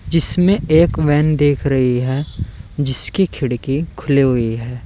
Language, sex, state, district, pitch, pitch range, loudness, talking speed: Hindi, male, Uttar Pradesh, Saharanpur, 140 Hz, 125-155 Hz, -16 LUFS, 135 wpm